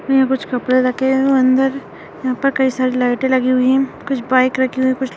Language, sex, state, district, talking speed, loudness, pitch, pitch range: Hindi, female, Bihar, Madhepura, 210 wpm, -16 LUFS, 260 Hz, 255-265 Hz